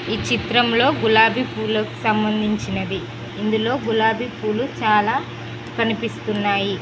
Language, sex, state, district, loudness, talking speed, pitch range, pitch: Telugu, female, Telangana, Mahabubabad, -20 LUFS, 90 wpm, 215-235 Hz, 220 Hz